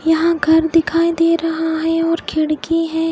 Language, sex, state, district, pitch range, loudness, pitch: Hindi, female, Odisha, Khordha, 320-330 Hz, -16 LUFS, 325 Hz